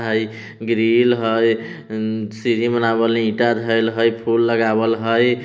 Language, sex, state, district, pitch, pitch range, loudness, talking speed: Hindi, male, Bihar, Vaishali, 115 Hz, 110-115 Hz, -18 LUFS, 120 wpm